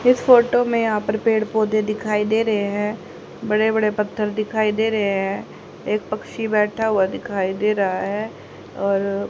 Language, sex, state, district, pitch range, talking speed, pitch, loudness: Hindi, female, Haryana, Rohtak, 205-220 Hz, 175 wpm, 210 Hz, -20 LUFS